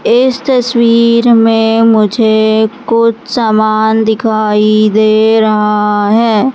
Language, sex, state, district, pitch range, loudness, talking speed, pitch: Hindi, male, Madhya Pradesh, Katni, 215-230 Hz, -9 LUFS, 90 wpm, 220 Hz